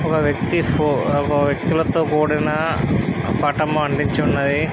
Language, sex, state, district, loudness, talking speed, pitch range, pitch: Telugu, male, Andhra Pradesh, Krishna, -19 LUFS, 115 wpm, 145-160 Hz, 150 Hz